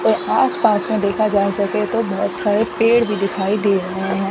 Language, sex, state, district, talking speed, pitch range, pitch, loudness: Hindi, female, Chandigarh, Chandigarh, 220 wpm, 195-215 Hz, 200 Hz, -18 LUFS